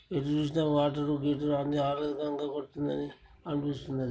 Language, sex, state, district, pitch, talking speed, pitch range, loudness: Telugu, male, Telangana, Karimnagar, 145 Hz, 145 wpm, 140-145 Hz, -31 LUFS